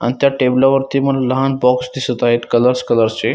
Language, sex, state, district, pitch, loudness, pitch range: Marathi, male, Maharashtra, Dhule, 125 Hz, -15 LUFS, 120-135 Hz